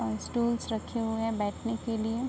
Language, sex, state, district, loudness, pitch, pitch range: Hindi, female, Uttar Pradesh, Budaun, -31 LUFS, 225 Hz, 220-235 Hz